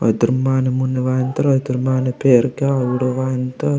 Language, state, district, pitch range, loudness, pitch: Gondi, Chhattisgarh, Sukma, 125-130 Hz, -18 LUFS, 130 Hz